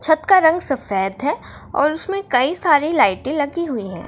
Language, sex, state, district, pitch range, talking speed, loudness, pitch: Hindi, female, Bihar, Darbhanga, 250-325 Hz, 190 wpm, -18 LUFS, 295 Hz